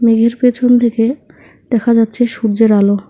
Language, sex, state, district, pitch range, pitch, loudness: Bengali, female, West Bengal, Alipurduar, 225-240 Hz, 230 Hz, -13 LUFS